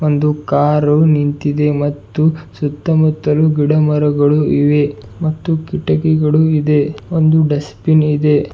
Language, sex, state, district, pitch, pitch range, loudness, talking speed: Kannada, male, Karnataka, Bidar, 150 Hz, 145-155 Hz, -14 LUFS, 100 wpm